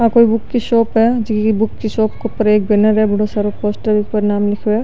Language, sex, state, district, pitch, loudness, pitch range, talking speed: Rajasthani, male, Rajasthan, Nagaur, 215 Hz, -15 LUFS, 210-225 Hz, 270 wpm